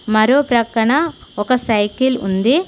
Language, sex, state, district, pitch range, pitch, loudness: Telugu, female, Telangana, Mahabubabad, 215-265 Hz, 240 Hz, -16 LUFS